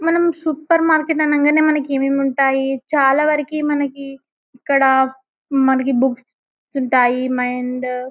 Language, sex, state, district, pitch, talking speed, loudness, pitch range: Telugu, female, Telangana, Karimnagar, 275 Hz, 110 wpm, -17 LUFS, 265-300 Hz